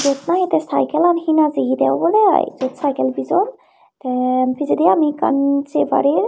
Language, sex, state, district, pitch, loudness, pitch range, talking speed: Chakma, female, Tripura, Unakoti, 285 Hz, -17 LUFS, 255-335 Hz, 160 wpm